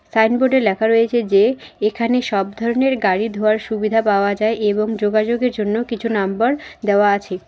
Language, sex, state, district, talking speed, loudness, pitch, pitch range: Bengali, female, West Bengal, Alipurduar, 150 wpm, -18 LUFS, 220 Hz, 205-230 Hz